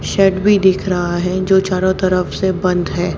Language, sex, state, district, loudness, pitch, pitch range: Hindi, female, Haryana, Jhajjar, -15 LUFS, 185 Hz, 180-190 Hz